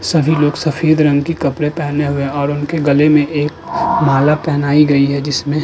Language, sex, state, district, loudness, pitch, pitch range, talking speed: Hindi, male, Uttar Pradesh, Budaun, -14 LUFS, 150 Hz, 145-155 Hz, 200 wpm